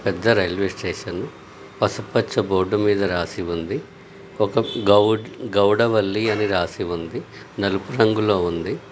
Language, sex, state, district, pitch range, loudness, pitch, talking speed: Telugu, male, Telangana, Nalgonda, 90-105 Hz, -21 LUFS, 100 Hz, 110 wpm